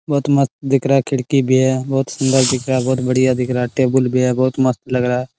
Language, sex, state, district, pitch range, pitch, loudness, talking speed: Hindi, male, Bihar, Araria, 125-135 Hz, 130 Hz, -16 LUFS, 300 wpm